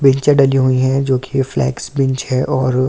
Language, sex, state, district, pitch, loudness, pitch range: Hindi, male, Delhi, New Delhi, 130 Hz, -15 LUFS, 130-135 Hz